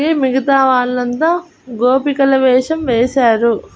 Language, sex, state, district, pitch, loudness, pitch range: Telugu, female, Andhra Pradesh, Annamaya, 260 Hz, -14 LUFS, 250-280 Hz